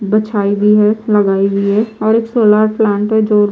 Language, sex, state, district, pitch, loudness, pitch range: Hindi, female, Chhattisgarh, Raipur, 210 Hz, -12 LUFS, 205-220 Hz